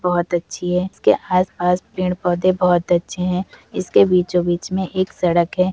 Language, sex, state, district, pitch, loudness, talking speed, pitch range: Hindi, female, Uttar Pradesh, Gorakhpur, 180 Hz, -19 LUFS, 180 wpm, 175-185 Hz